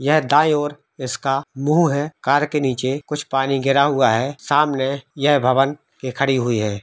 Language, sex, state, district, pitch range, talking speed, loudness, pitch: Hindi, male, Jharkhand, Sahebganj, 135-145 Hz, 185 wpm, -19 LUFS, 140 Hz